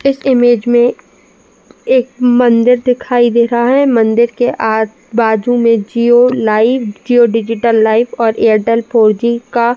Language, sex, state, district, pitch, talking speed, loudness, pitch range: Hindi, female, Uttar Pradesh, Jalaun, 235 Hz, 140 wpm, -11 LUFS, 225-245 Hz